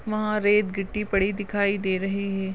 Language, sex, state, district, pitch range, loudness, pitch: Hindi, female, Goa, North and South Goa, 195-210 Hz, -25 LUFS, 200 Hz